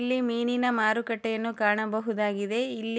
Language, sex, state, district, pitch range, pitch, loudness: Kannada, female, Karnataka, Chamarajanagar, 220-240 Hz, 230 Hz, -27 LUFS